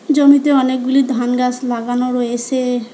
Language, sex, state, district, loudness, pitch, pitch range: Bengali, female, West Bengal, Alipurduar, -15 LUFS, 250 Hz, 245-265 Hz